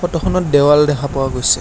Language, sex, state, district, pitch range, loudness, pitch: Assamese, male, Assam, Kamrup Metropolitan, 140-165 Hz, -14 LUFS, 145 Hz